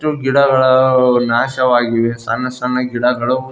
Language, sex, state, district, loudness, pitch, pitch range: Kannada, male, Karnataka, Koppal, -14 LUFS, 125 Hz, 120-130 Hz